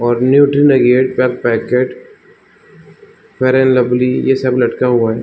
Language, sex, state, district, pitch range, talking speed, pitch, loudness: Hindi, male, Bihar, Saran, 120-130 Hz, 150 wpm, 125 Hz, -12 LUFS